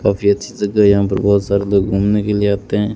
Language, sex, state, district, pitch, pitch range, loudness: Hindi, male, Rajasthan, Bikaner, 100 Hz, 100-105 Hz, -15 LUFS